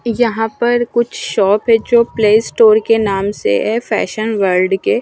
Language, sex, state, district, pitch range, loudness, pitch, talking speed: Hindi, female, Punjab, Kapurthala, 210-235 Hz, -14 LUFS, 225 Hz, 180 wpm